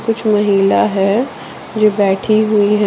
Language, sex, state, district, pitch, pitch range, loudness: Hindi, female, Jharkhand, Deoghar, 210 Hz, 200-215 Hz, -14 LUFS